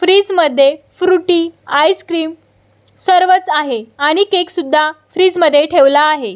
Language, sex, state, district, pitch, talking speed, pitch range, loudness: Marathi, female, Maharashtra, Solapur, 335 Hz, 105 wpm, 300-370 Hz, -12 LUFS